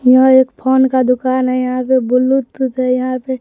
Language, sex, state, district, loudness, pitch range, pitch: Hindi, male, Bihar, West Champaran, -14 LUFS, 255-260 Hz, 255 Hz